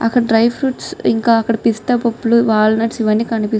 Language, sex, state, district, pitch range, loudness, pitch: Telugu, female, Telangana, Nalgonda, 225-235 Hz, -15 LUFS, 230 Hz